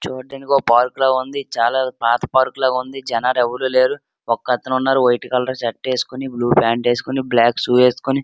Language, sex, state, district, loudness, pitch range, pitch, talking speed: Telugu, male, Andhra Pradesh, Srikakulam, -18 LUFS, 120-130 Hz, 130 Hz, 180 wpm